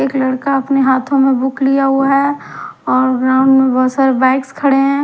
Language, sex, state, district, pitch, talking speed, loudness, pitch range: Hindi, female, Haryana, Charkhi Dadri, 270 Hz, 190 wpm, -13 LUFS, 260-275 Hz